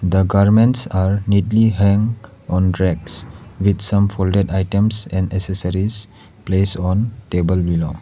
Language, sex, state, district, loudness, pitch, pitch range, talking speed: English, male, Arunachal Pradesh, Lower Dibang Valley, -17 LUFS, 100 Hz, 95-105 Hz, 125 wpm